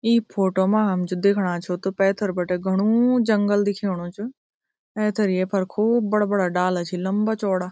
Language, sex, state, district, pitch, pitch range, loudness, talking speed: Garhwali, female, Uttarakhand, Tehri Garhwal, 195 Hz, 185-215 Hz, -22 LUFS, 180 wpm